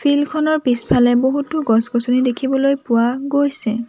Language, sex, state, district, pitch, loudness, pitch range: Assamese, female, Assam, Sonitpur, 265 Hz, -16 LUFS, 240-285 Hz